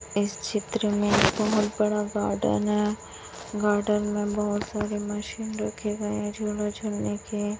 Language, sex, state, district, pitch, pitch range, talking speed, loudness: Hindi, female, Chhattisgarh, Raipur, 210 Hz, 205-210 Hz, 150 wpm, -27 LUFS